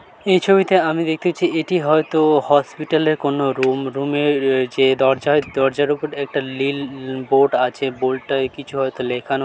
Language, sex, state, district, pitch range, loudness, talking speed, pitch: Bengali, male, West Bengal, Dakshin Dinajpur, 135-155 Hz, -18 LUFS, 165 wpm, 140 Hz